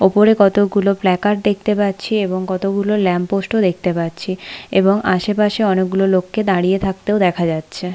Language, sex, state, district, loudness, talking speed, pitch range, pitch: Bengali, female, West Bengal, Paschim Medinipur, -17 LUFS, 150 wpm, 185-205 Hz, 195 Hz